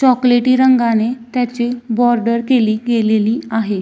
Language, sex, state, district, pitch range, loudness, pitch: Marathi, female, Maharashtra, Dhule, 225-250 Hz, -15 LUFS, 240 Hz